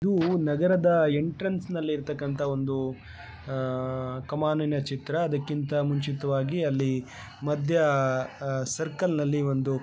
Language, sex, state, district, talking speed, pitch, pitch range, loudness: Kannada, male, Karnataka, Bellary, 105 wpm, 145 Hz, 135-155 Hz, -27 LUFS